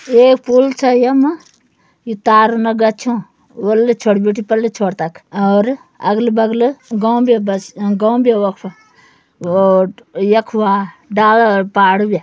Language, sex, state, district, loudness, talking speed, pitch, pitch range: Garhwali, female, Uttarakhand, Uttarkashi, -14 LUFS, 160 wpm, 220 Hz, 200-240 Hz